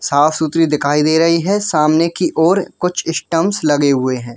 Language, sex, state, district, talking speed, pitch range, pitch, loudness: Hindi, male, Jharkhand, Jamtara, 180 wpm, 150-170 Hz, 160 Hz, -15 LUFS